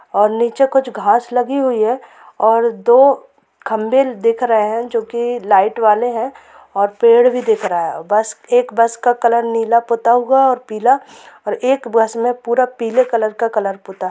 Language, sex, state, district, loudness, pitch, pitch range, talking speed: Hindi, female, Jharkhand, Sahebganj, -15 LUFS, 235 Hz, 220-245 Hz, 185 wpm